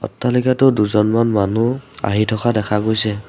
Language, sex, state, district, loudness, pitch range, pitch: Assamese, male, Assam, Sonitpur, -17 LUFS, 105-125 Hz, 110 Hz